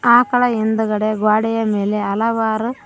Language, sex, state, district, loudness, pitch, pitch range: Kannada, female, Karnataka, Koppal, -17 LUFS, 220 Hz, 215-230 Hz